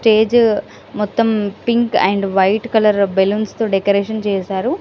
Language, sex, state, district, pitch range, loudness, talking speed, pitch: Telugu, female, Telangana, Karimnagar, 200-225 Hz, -16 LUFS, 135 wpm, 210 Hz